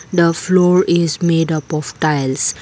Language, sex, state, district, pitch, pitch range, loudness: English, female, Assam, Kamrup Metropolitan, 165 Hz, 155-175 Hz, -15 LUFS